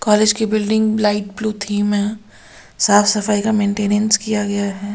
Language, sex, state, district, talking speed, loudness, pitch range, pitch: Hindi, female, Bihar, Katihar, 180 wpm, -17 LUFS, 205-215 Hz, 210 Hz